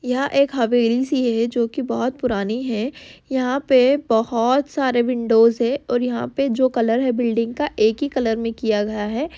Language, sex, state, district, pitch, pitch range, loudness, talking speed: Hindi, female, Uttar Pradesh, Hamirpur, 245 Hz, 230-265 Hz, -20 LUFS, 200 wpm